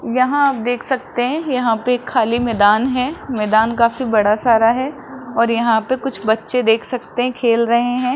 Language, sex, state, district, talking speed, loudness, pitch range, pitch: Hindi, male, Rajasthan, Jaipur, 200 wpm, -17 LUFS, 230-255 Hz, 245 Hz